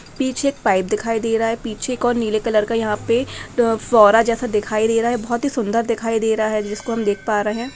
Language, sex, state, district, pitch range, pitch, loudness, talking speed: Hindi, female, Bihar, Araria, 215-235 Hz, 225 Hz, -19 LUFS, 265 wpm